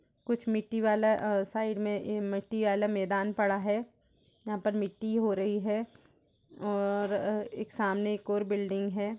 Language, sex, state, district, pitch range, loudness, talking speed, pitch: Hindi, female, Uttar Pradesh, Jalaun, 200-215 Hz, -31 LUFS, 155 wpm, 210 Hz